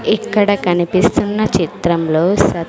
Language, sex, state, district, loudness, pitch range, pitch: Telugu, female, Andhra Pradesh, Sri Satya Sai, -15 LUFS, 170-210 Hz, 185 Hz